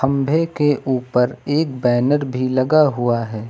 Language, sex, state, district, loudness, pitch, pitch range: Hindi, female, Uttar Pradesh, Lucknow, -18 LUFS, 130 Hz, 125-145 Hz